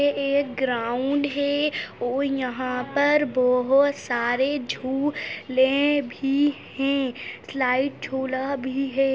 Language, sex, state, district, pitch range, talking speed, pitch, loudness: Hindi, female, Chhattisgarh, Sarguja, 255-285 Hz, 110 wpm, 270 Hz, -24 LUFS